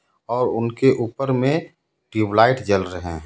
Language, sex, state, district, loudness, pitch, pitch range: Hindi, male, Jharkhand, Ranchi, -20 LUFS, 120 Hz, 105-135 Hz